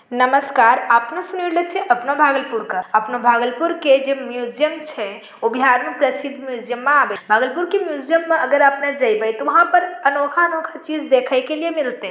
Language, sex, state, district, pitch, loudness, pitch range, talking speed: Angika, female, Bihar, Bhagalpur, 280 Hz, -17 LUFS, 245-325 Hz, 195 wpm